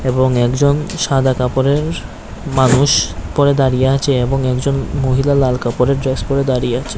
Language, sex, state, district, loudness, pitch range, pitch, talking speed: Bengali, male, Tripura, West Tripura, -15 LUFS, 125-140 Hz, 130 Hz, 145 wpm